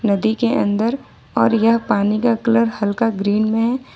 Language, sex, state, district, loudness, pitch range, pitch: Hindi, female, Jharkhand, Ranchi, -18 LUFS, 210-230 Hz, 225 Hz